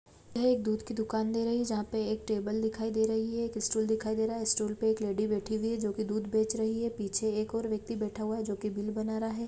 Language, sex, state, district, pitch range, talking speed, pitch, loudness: Hindi, female, Jharkhand, Jamtara, 215-225 Hz, 295 wpm, 220 Hz, -32 LUFS